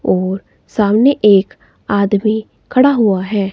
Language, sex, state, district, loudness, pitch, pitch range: Hindi, female, Himachal Pradesh, Shimla, -14 LUFS, 205 Hz, 195-220 Hz